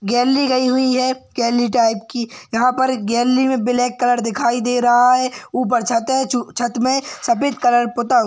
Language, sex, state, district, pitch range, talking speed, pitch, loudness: Hindi, male, Maharashtra, Solapur, 240-255 Hz, 195 wpm, 245 Hz, -17 LUFS